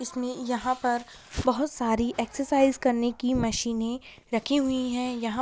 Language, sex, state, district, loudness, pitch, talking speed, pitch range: Hindi, female, Jharkhand, Sahebganj, -27 LUFS, 250 Hz, 155 wpm, 235-255 Hz